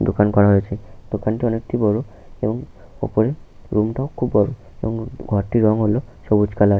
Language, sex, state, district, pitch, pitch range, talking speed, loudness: Bengali, male, West Bengal, Paschim Medinipur, 110 Hz, 105-115 Hz, 160 wpm, -20 LUFS